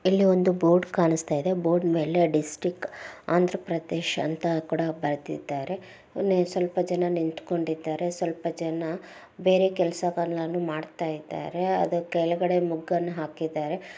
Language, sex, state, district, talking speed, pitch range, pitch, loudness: Kannada, female, Karnataka, Bellary, 105 wpm, 160-180 Hz, 170 Hz, -26 LUFS